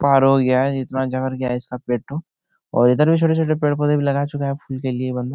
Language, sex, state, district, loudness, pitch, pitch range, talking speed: Hindi, male, Bihar, Supaul, -19 LUFS, 135 Hz, 130-145 Hz, 200 wpm